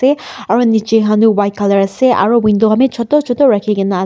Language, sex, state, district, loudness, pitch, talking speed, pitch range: Nagamese, female, Nagaland, Dimapur, -12 LUFS, 220 Hz, 235 wpm, 205-250 Hz